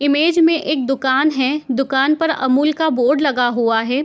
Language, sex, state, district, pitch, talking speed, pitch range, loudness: Hindi, female, Bihar, Gopalganj, 275 Hz, 195 wpm, 260-305 Hz, -16 LUFS